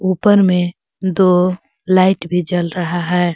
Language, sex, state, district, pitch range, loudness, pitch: Hindi, female, Jharkhand, Garhwa, 175-185 Hz, -15 LUFS, 180 Hz